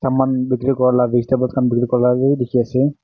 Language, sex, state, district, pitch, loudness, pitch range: Nagamese, male, Nagaland, Kohima, 125 Hz, -17 LUFS, 125-130 Hz